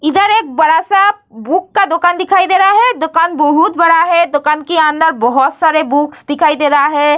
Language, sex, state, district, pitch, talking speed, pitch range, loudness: Hindi, female, Bihar, Vaishali, 325 Hz, 200 wpm, 300-365 Hz, -11 LUFS